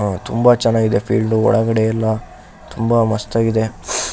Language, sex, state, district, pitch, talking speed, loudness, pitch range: Kannada, male, Karnataka, Shimoga, 110 Hz, 115 wpm, -17 LUFS, 110-115 Hz